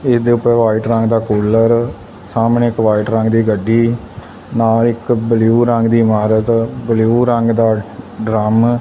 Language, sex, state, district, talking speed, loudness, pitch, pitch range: Punjabi, male, Punjab, Fazilka, 155 wpm, -14 LUFS, 115 Hz, 110-120 Hz